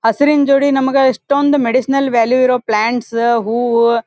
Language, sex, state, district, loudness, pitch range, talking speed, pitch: Kannada, female, Karnataka, Dharwad, -14 LUFS, 235-275 Hz, 145 wpm, 250 Hz